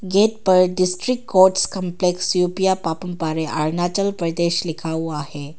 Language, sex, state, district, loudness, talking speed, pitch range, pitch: Hindi, female, Arunachal Pradesh, Papum Pare, -20 LUFS, 130 wpm, 165-190 Hz, 180 Hz